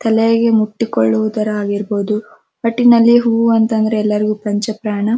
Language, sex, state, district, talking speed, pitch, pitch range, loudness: Kannada, female, Karnataka, Dharwad, 105 wpm, 215 Hz, 210-230 Hz, -15 LUFS